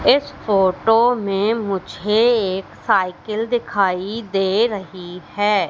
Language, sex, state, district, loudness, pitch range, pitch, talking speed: Hindi, female, Madhya Pradesh, Katni, -19 LUFS, 190-225 Hz, 205 Hz, 105 wpm